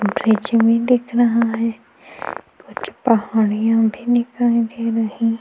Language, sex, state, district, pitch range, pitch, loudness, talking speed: Hindi, female, Uttarakhand, Tehri Garhwal, 225-235 Hz, 230 Hz, -18 LUFS, 120 wpm